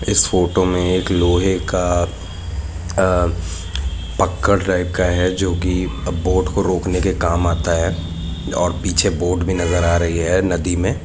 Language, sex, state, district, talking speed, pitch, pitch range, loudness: Hindi, male, Jharkhand, Jamtara, 150 wpm, 90 Hz, 85-90 Hz, -18 LUFS